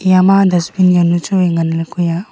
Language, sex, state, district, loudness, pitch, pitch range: Wancho, female, Arunachal Pradesh, Longding, -13 LUFS, 175 Hz, 170-185 Hz